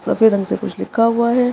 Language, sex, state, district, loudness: Hindi, female, Maharashtra, Aurangabad, -17 LUFS